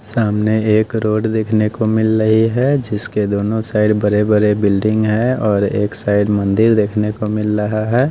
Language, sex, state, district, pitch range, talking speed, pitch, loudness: Hindi, male, Odisha, Nuapada, 105-110 Hz, 180 wpm, 110 Hz, -15 LUFS